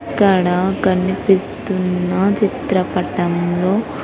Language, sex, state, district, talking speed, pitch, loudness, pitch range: Telugu, female, Andhra Pradesh, Sri Satya Sai, 45 wpm, 185 Hz, -17 LUFS, 180-195 Hz